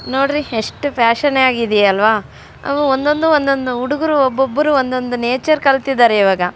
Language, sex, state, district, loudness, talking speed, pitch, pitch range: Kannada, female, Karnataka, Raichur, -15 LUFS, 135 wpm, 265 Hz, 235-285 Hz